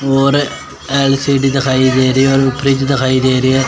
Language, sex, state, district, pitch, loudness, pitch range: Hindi, male, Chandigarh, Chandigarh, 135 Hz, -13 LUFS, 130-140 Hz